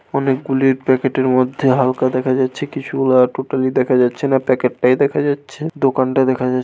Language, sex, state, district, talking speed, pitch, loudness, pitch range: Bengali, male, West Bengal, Paschim Medinipur, 180 wpm, 130 Hz, -16 LUFS, 130-135 Hz